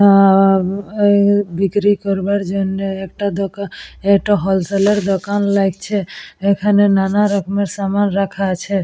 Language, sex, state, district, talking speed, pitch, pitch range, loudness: Bengali, female, West Bengal, Purulia, 100 wpm, 200 Hz, 195-200 Hz, -16 LUFS